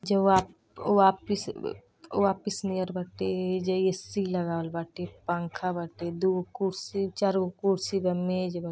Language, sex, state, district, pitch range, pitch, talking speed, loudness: Hindi, female, Uttar Pradesh, Deoria, 180-195 Hz, 185 Hz, 145 wpm, -29 LUFS